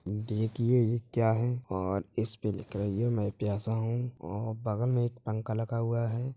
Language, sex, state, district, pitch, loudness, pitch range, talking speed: Hindi, male, Uttar Pradesh, Hamirpur, 110 Hz, -31 LUFS, 105-120 Hz, 190 wpm